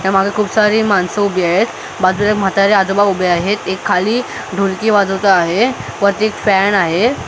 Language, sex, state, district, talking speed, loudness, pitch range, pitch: Marathi, male, Maharashtra, Mumbai Suburban, 190 wpm, -14 LUFS, 190-210 Hz, 200 Hz